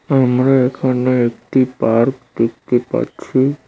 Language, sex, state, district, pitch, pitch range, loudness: Bengali, male, West Bengal, Cooch Behar, 125 Hz, 120-130 Hz, -16 LUFS